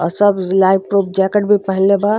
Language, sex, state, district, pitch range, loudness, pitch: Bhojpuri, female, Uttar Pradesh, Gorakhpur, 190-205 Hz, -14 LUFS, 195 Hz